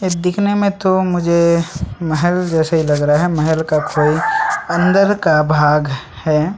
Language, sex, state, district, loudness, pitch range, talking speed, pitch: Hindi, male, Chhattisgarh, Sukma, -15 LUFS, 155-185 Hz, 165 wpm, 170 Hz